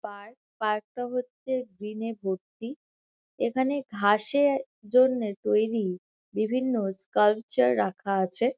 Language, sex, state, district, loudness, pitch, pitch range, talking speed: Bengali, female, West Bengal, Kolkata, -27 LUFS, 220 Hz, 205-250 Hz, 105 wpm